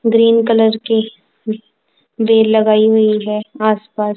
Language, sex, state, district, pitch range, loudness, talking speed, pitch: Hindi, female, Punjab, Kapurthala, 215-225 Hz, -13 LUFS, 115 wpm, 220 Hz